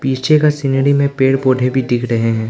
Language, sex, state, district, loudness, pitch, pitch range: Hindi, male, Arunachal Pradesh, Lower Dibang Valley, -14 LUFS, 130 Hz, 125-140 Hz